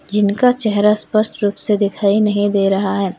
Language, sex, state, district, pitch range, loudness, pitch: Hindi, female, Jharkhand, Deoghar, 200-215 Hz, -16 LUFS, 205 Hz